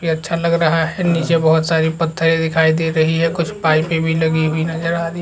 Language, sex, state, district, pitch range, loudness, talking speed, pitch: Chhattisgarhi, male, Chhattisgarh, Jashpur, 160-165 Hz, -16 LUFS, 240 wpm, 165 Hz